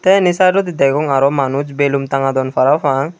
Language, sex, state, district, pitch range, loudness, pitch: Chakma, male, Tripura, Unakoti, 135-175 Hz, -14 LUFS, 140 Hz